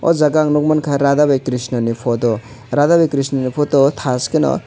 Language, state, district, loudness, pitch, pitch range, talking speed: Kokborok, Tripura, West Tripura, -16 LUFS, 140 Hz, 125-150 Hz, 205 wpm